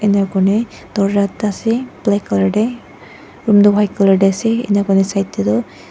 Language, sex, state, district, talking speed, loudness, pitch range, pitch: Nagamese, female, Nagaland, Dimapur, 170 wpm, -15 LUFS, 195-210 Hz, 200 Hz